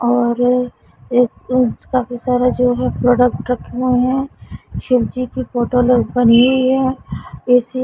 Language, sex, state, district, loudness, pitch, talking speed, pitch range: Hindi, female, Punjab, Pathankot, -16 LUFS, 250 Hz, 130 wpm, 245-255 Hz